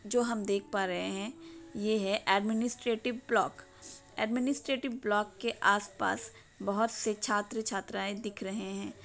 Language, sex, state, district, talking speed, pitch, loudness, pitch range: Hindi, female, West Bengal, Purulia, 130 wpm, 215 Hz, -32 LUFS, 200-240 Hz